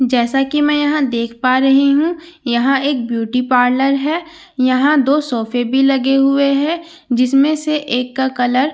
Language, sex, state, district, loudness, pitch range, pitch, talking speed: Hindi, female, Bihar, Katihar, -15 LUFS, 250-295 Hz, 270 Hz, 180 wpm